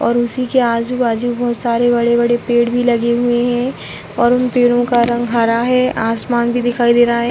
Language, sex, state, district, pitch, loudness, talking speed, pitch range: Hindi, female, Uttar Pradesh, Hamirpur, 240 Hz, -15 LUFS, 205 wpm, 235-245 Hz